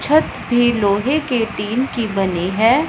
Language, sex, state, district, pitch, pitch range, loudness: Hindi, female, Punjab, Pathankot, 235 Hz, 205-255 Hz, -18 LUFS